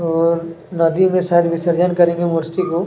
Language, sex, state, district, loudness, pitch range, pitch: Hindi, male, Chhattisgarh, Kabirdham, -16 LUFS, 165-175 Hz, 170 Hz